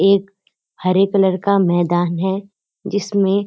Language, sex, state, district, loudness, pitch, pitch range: Hindi, female, Uttarakhand, Uttarkashi, -17 LUFS, 195 Hz, 185-200 Hz